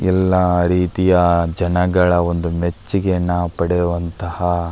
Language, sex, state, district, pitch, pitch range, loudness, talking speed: Kannada, male, Karnataka, Belgaum, 90 Hz, 85-90 Hz, -17 LUFS, 90 wpm